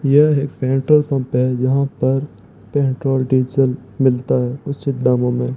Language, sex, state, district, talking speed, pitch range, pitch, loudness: Hindi, male, Rajasthan, Bikaner, 150 wpm, 125-140 Hz, 130 Hz, -17 LUFS